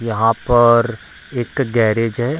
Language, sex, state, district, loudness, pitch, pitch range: Hindi, male, Bihar, Darbhanga, -16 LUFS, 115 Hz, 115-120 Hz